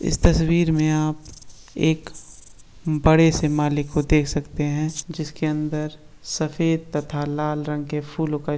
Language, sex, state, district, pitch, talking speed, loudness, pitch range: Hindi, male, Bihar, East Champaran, 150 Hz, 155 wpm, -22 LUFS, 150-160 Hz